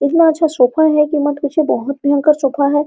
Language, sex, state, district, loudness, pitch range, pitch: Hindi, female, Bihar, Araria, -14 LUFS, 280-310 Hz, 295 Hz